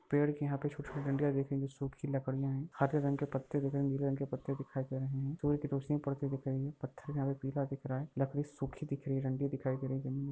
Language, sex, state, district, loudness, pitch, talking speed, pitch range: Hindi, male, Chhattisgarh, Raigarh, -37 LUFS, 140 Hz, 320 wpm, 135-145 Hz